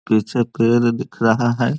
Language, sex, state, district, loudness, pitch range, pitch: Hindi, male, Bihar, Jahanabad, -18 LUFS, 115-120 Hz, 120 Hz